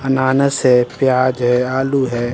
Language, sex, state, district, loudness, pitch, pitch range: Hindi, male, Bihar, Patna, -15 LUFS, 130 Hz, 125-135 Hz